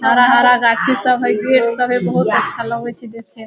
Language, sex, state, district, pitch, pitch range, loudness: Hindi, female, Bihar, Sitamarhi, 235 Hz, 230-245 Hz, -14 LUFS